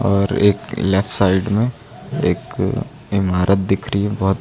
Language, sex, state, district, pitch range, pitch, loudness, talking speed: Hindi, male, Uttar Pradesh, Lucknow, 95-100 Hz, 100 Hz, -18 LUFS, 150 wpm